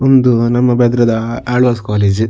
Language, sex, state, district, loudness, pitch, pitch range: Tulu, male, Karnataka, Dakshina Kannada, -13 LUFS, 120 Hz, 115-125 Hz